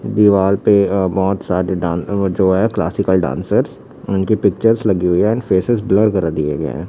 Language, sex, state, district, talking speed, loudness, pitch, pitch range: Hindi, male, Chhattisgarh, Raipur, 200 wpm, -16 LUFS, 95 Hz, 90-105 Hz